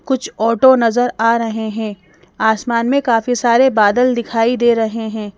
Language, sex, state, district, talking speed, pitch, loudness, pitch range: Hindi, female, Madhya Pradesh, Bhopal, 165 wpm, 230 Hz, -15 LUFS, 220-245 Hz